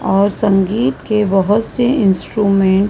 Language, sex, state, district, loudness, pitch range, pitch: Hindi, female, Maharashtra, Mumbai Suburban, -14 LUFS, 195-215 Hz, 200 Hz